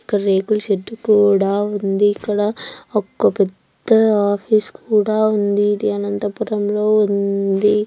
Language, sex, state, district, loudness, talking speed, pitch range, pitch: Telugu, female, Andhra Pradesh, Anantapur, -17 LUFS, 100 wpm, 200-215 Hz, 205 Hz